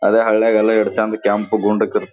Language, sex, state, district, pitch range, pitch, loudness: Kannada, male, Karnataka, Gulbarga, 105-110 Hz, 110 Hz, -16 LUFS